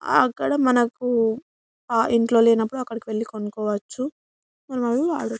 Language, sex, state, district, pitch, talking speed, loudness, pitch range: Telugu, female, Telangana, Karimnagar, 230 Hz, 100 wpm, -22 LUFS, 220-255 Hz